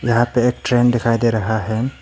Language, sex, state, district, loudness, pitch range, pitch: Hindi, male, Arunachal Pradesh, Papum Pare, -17 LUFS, 115-120 Hz, 120 Hz